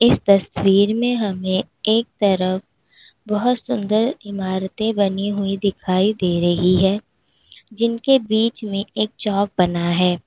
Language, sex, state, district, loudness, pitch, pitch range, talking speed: Hindi, female, Uttar Pradesh, Lalitpur, -19 LUFS, 200 Hz, 190-220 Hz, 130 wpm